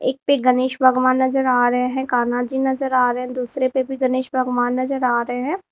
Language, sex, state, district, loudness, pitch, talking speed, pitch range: Hindi, female, Uttar Pradesh, Lalitpur, -19 LUFS, 255 Hz, 240 wpm, 250-265 Hz